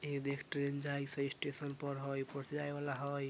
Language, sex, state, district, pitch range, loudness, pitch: Bajjika, male, Bihar, Vaishali, 140-145 Hz, -40 LUFS, 140 Hz